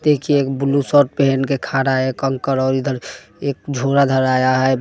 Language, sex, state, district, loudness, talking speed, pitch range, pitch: Hindi, male, Bihar, West Champaran, -17 LUFS, 200 wpm, 130-140 Hz, 135 Hz